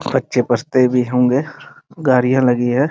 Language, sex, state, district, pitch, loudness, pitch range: Hindi, male, Bihar, Muzaffarpur, 125 Hz, -16 LUFS, 125-130 Hz